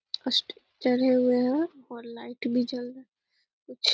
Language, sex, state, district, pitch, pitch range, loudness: Hindi, female, Bihar, Begusarai, 255 Hz, 245-265 Hz, -26 LUFS